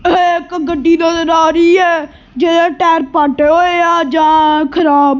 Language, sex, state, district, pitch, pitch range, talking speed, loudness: Punjabi, female, Punjab, Kapurthala, 330 Hz, 310-340 Hz, 160 wpm, -11 LUFS